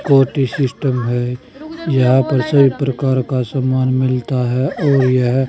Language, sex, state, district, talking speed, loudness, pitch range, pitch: Hindi, male, Haryana, Charkhi Dadri, 130 wpm, -16 LUFS, 130-135 Hz, 130 Hz